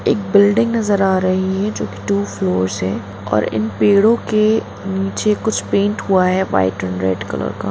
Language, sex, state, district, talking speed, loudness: Hindi, female, Bihar, Gopalganj, 200 wpm, -17 LUFS